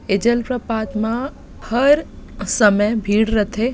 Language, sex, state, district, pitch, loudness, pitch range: Chhattisgarhi, female, Chhattisgarh, Bastar, 220 Hz, -18 LUFS, 210-245 Hz